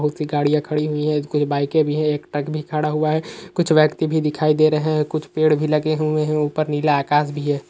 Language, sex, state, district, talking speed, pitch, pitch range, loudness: Hindi, male, Uttar Pradesh, Etah, 265 wpm, 150 Hz, 150-155 Hz, -20 LUFS